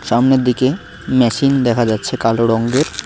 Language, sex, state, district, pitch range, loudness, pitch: Bengali, male, West Bengal, Cooch Behar, 115-130 Hz, -15 LUFS, 125 Hz